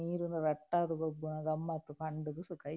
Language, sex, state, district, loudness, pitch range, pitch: Tulu, female, Karnataka, Dakshina Kannada, -38 LUFS, 155-165 Hz, 155 Hz